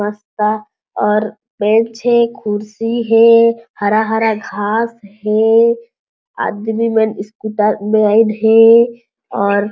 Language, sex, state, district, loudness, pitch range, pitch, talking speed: Chhattisgarhi, female, Chhattisgarh, Jashpur, -14 LUFS, 210-230 Hz, 220 Hz, 105 wpm